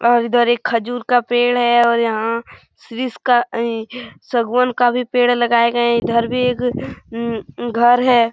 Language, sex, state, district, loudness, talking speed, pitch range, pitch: Hindi, female, Bihar, Saran, -17 LUFS, 185 wpm, 235-245 Hz, 240 Hz